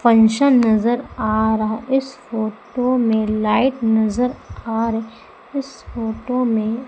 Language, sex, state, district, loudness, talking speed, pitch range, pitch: Hindi, female, Madhya Pradesh, Umaria, -19 LUFS, 120 wpm, 220-250 Hz, 230 Hz